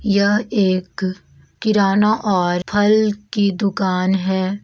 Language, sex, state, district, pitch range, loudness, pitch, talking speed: Hindi, female, Chhattisgarh, Balrampur, 185-210 Hz, -18 LUFS, 200 Hz, 105 wpm